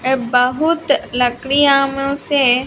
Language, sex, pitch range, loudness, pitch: Hindi, female, 250-285 Hz, -15 LUFS, 275 Hz